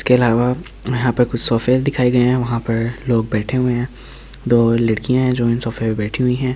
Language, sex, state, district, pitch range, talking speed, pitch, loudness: Hindi, male, Delhi, New Delhi, 115-125 Hz, 230 wpm, 120 Hz, -17 LUFS